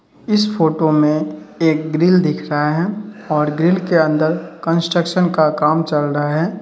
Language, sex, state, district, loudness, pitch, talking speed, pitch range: Hindi, male, Uttar Pradesh, Hamirpur, -16 LUFS, 160 Hz, 165 wpm, 155-175 Hz